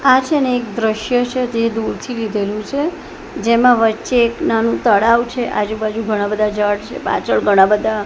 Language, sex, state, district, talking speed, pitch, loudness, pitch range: Gujarati, female, Gujarat, Gandhinagar, 195 wpm, 230 Hz, -16 LUFS, 215-245 Hz